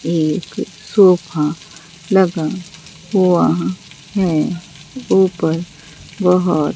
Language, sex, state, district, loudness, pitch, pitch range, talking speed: Hindi, female, Bihar, Katihar, -16 LUFS, 170 Hz, 155-185 Hz, 60 wpm